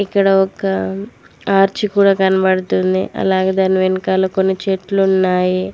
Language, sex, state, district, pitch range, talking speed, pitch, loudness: Telugu, female, Telangana, Mahabubabad, 185-195 Hz, 115 wpm, 190 Hz, -15 LUFS